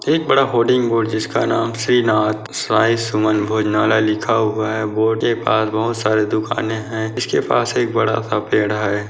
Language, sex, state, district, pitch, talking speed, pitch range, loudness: Hindi, male, Bihar, Kishanganj, 110 Hz, 180 wpm, 110-115 Hz, -17 LUFS